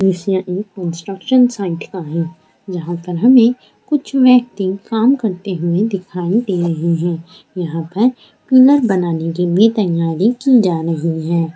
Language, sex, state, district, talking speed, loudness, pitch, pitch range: Hindi, female, Chhattisgarh, Raigarh, 160 wpm, -15 LUFS, 185 Hz, 170-225 Hz